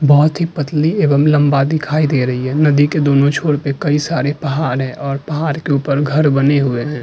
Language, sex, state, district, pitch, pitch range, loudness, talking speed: Hindi, male, Uttarakhand, Tehri Garhwal, 145 Hz, 140-155 Hz, -15 LUFS, 220 wpm